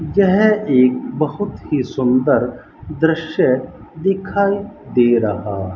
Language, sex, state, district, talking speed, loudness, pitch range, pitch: Hindi, male, Rajasthan, Bikaner, 95 wpm, -17 LUFS, 125-195 Hz, 150 Hz